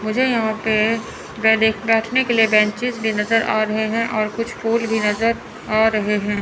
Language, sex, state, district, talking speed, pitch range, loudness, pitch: Hindi, male, Chandigarh, Chandigarh, 195 wpm, 215-230 Hz, -18 LUFS, 220 Hz